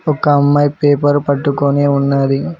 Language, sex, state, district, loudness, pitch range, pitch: Telugu, male, Telangana, Mahabubabad, -13 LUFS, 140-145 Hz, 145 Hz